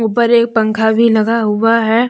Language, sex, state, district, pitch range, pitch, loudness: Hindi, female, Jharkhand, Deoghar, 220-235 Hz, 225 Hz, -12 LUFS